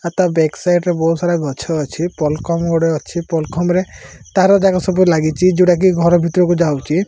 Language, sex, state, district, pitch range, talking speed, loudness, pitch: Odia, male, Odisha, Malkangiri, 160-180 Hz, 220 wpm, -15 LUFS, 170 Hz